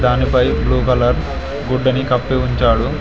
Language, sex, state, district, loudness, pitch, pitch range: Telugu, male, Telangana, Mahabubabad, -16 LUFS, 125 Hz, 115-130 Hz